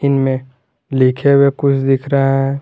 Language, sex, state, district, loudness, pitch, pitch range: Hindi, male, Jharkhand, Garhwa, -14 LUFS, 135 Hz, 130-140 Hz